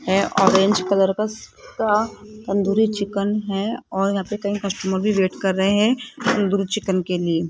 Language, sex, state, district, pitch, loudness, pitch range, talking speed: Hindi, female, Rajasthan, Jaipur, 200 Hz, -21 LUFS, 195-215 Hz, 175 wpm